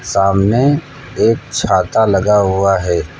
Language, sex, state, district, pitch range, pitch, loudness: Hindi, male, Uttar Pradesh, Lucknow, 95-120 Hz, 100 Hz, -14 LUFS